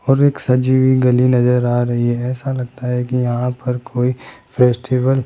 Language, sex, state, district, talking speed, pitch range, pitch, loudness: Hindi, male, Rajasthan, Jaipur, 205 wpm, 125-130 Hz, 125 Hz, -16 LUFS